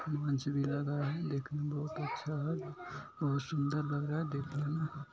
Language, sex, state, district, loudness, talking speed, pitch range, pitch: Hindi, male, Bihar, Araria, -37 LUFS, 185 wpm, 145-155 Hz, 150 Hz